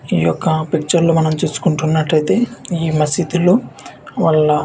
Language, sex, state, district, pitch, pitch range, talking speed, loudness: Telugu, male, Andhra Pradesh, Visakhapatnam, 160 Hz, 155-175 Hz, 90 wpm, -16 LUFS